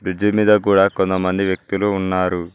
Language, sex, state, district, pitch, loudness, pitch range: Telugu, male, Telangana, Mahabubabad, 95 Hz, -17 LUFS, 95-100 Hz